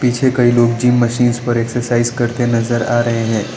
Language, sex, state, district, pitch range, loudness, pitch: Hindi, male, Arunachal Pradesh, Lower Dibang Valley, 115-120 Hz, -15 LUFS, 120 Hz